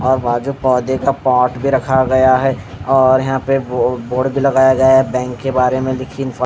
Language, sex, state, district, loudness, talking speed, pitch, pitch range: Hindi, male, Odisha, Khordha, -14 LUFS, 195 wpm, 130 Hz, 125-135 Hz